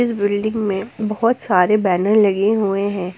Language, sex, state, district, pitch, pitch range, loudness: Hindi, female, Jharkhand, Ranchi, 205 Hz, 195-215 Hz, -17 LUFS